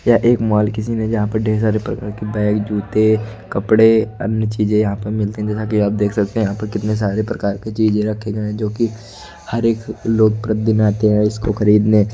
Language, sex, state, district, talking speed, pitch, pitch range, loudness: Hindi, male, Odisha, Nuapada, 215 wpm, 110 Hz, 105-110 Hz, -17 LUFS